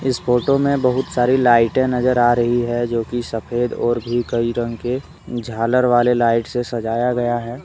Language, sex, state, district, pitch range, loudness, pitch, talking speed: Hindi, male, Jharkhand, Deoghar, 120-125 Hz, -18 LUFS, 120 Hz, 190 wpm